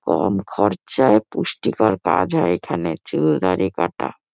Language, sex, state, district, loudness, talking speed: Bengali, female, West Bengal, Kolkata, -20 LUFS, 125 wpm